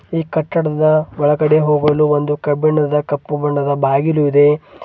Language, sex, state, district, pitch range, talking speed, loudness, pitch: Kannada, male, Karnataka, Bidar, 145-155 Hz, 125 wpm, -15 LUFS, 150 Hz